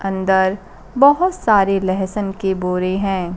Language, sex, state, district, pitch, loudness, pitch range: Hindi, female, Bihar, Kaimur, 190 Hz, -17 LUFS, 185-200 Hz